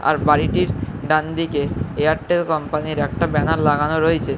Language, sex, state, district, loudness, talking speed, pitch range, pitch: Bengali, male, West Bengal, Jhargram, -19 LUFS, 125 wpm, 145-160 Hz, 155 Hz